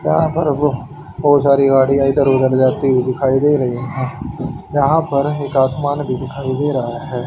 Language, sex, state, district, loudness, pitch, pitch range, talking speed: Hindi, male, Haryana, Charkhi Dadri, -16 LUFS, 140 Hz, 130-145 Hz, 190 wpm